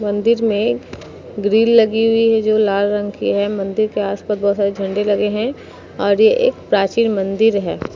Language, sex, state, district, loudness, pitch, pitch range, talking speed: Hindi, female, Uttar Pradesh, Muzaffarnagar, -16 LUFS, 210 Hz, 200-225 Hz, 190 wpm